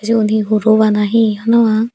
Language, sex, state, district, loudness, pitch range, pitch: Chakma, female, Tripura, Dhalai, -13 LUFS, 215-225 Hz, 220 Hz